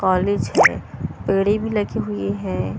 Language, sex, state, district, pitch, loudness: Hindi, female, Punjab, Kapurthala, 190 Hz, -20 LUFS